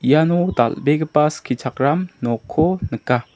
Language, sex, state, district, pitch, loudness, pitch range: Garo, male, Meghalaya, South Garo Hills, 145 Hz, -19 LUFS, 125-160 Hz